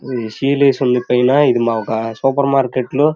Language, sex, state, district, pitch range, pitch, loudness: Telugu, male, Andhra Pradesh, Krishna, 120-140 Hz, 130 Hz, -15 LUFS